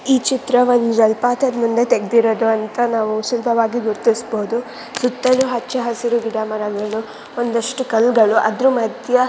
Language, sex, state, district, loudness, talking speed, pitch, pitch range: Kannada, female, Karnataka, Shimoga, -17 LUFS, 105 wpm, 235 Hz, 220-245 Hz